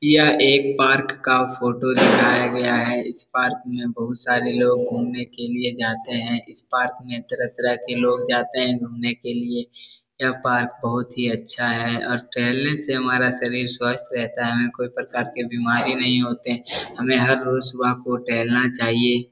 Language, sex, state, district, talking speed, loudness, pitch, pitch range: Hindi, male, Bihar, Darbhanga, 175 wpm, -21 LUFS, 125 Hz, 120-125 Hz